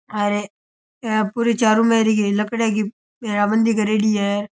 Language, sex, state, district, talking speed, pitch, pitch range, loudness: Rajasthani, male, Rajasthan, Churu, 120 wpm, 215 Hz, 205-225 Hz, -19 LUFS